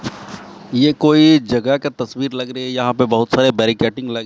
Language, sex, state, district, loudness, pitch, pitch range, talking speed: Hindi, male, Bihar, Katihar, -16 LUFS, 125 Hz, 120-140 Hz, 195 wpm